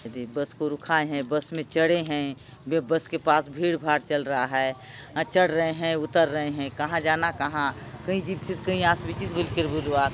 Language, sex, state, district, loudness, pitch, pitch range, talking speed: Chhattisgarhi, male, Chhattisgarh, Bastar, -26 LUFS, 150 Hz, 140-165 Hz, 205 wpm